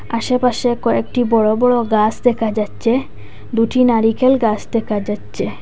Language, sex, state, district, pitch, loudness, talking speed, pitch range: Bengali, female, Assam, Hailakandi, 230 Hz, -16 LUFS, 130 wpm, 215-245 Hz